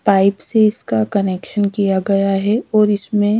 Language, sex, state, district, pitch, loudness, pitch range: Hindi, female, Madhya Pradesh, Dhar, 200 Hz, -16 LUFS, 195-210 Hz